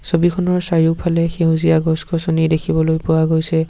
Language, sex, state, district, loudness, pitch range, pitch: Assamese, male, Assam, Sonitpur, -17 LUFS, 160-170 Hz, 165 Hz